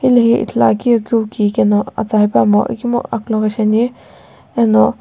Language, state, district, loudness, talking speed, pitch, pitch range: Sumi, Nagaland, Kohima, -14 LUFS, 145 wpm, 220 Hz, 210-235 Hz